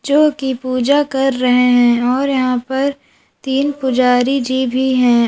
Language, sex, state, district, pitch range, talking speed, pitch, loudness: Hindi, female, Uttar Pradesh, Lalitpur, 250-275 Hz, 160 wpm, 260 Hz, -15 LUFS